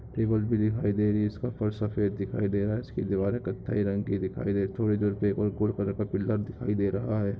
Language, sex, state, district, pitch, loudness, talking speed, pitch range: Hindi, male, Goa, North and South Goa, 105 Hz, -29 LUFS, 250 wpm, 100-110 Hz